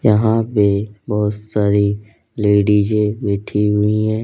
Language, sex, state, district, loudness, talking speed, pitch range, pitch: Hindi, male, Uttar Pradesh, Lalitpur, -17 LUFS, 115 wpm, 105-110 Hz, 105 Hz